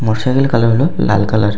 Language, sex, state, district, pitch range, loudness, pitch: Bengali, male, West Bengal, Paschim Medinipur, 105-130 Hz, -14 LUFS, 115 Hz